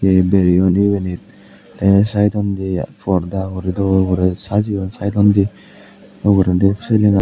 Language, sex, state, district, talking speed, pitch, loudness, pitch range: Chakma, male, Tripura, West Tripura, 100 wpm, 95 Hz, -16 LUFS, 95-100 Hz